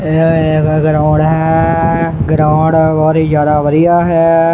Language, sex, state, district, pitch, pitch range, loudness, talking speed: Punjabi, male, Punjab, Kapurthala, 160 Hz, 155-165 Hz, -11 LUFS, 130 wpm